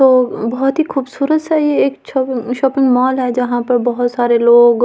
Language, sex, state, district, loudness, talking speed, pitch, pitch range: Hindi, female, Delhi, New Delhi, -14 LUFS, 210 wpm, 255 Hz, 245-270 Hz